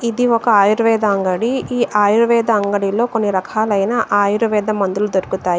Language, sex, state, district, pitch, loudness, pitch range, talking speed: Telugu, female, Telangana, Adilabad, 210 Hz, -16 LUFS, 200-230 Hz, 130 wpm